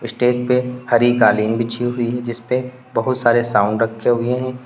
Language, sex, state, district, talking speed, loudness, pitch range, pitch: Hindi, male, Uttar Pradesh, Lalitpur, 180 wpm, -18 LUFS, 120-125 Hz, 120 Hz